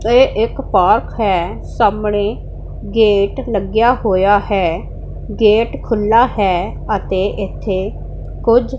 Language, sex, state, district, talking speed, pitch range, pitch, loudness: Punjabi, female, Punjab, Pathankot, 110 wpm, 200-230 Hz, 210 Hz, -15 LUFS